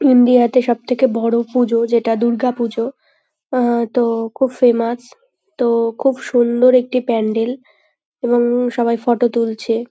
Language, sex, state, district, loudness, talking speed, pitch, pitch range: Bengali, female, West Bengal, North 24 Parganas, -16 LUFS, 115 wpm, 240 Hz, 230-250 Hz